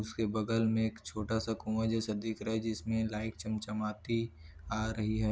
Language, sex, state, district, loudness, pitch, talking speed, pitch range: Hindi, male, Chhattisgarh, Korba, -35 LUFS, 110 Hz, 170 wpm, 105-110 Hz